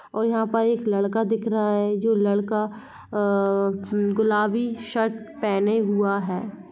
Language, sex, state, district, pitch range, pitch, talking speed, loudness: Hindi, female, Jharkhand, Jamtara, 205-225 Hz, 210 Hz, 145 wpm, -23 LUFS